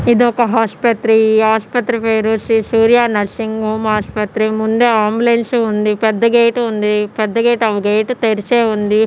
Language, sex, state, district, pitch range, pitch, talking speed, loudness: Telugu, female, Andhra Pradesh, Sri Satya Sai, 215-235 Hz, 220 Hz, 130 wpm, -14 LUFS